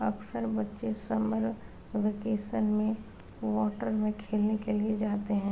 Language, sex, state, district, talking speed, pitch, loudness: Hindi, female, Uttar Pradesh, Varanasi, 130 wpm, 205 Hz, -32 LUFS